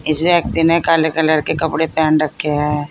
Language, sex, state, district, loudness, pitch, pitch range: Hindi, female, Uttar Pradesh, Saharanpur, -16 LUFS, 160 Hz, 155-160 Hz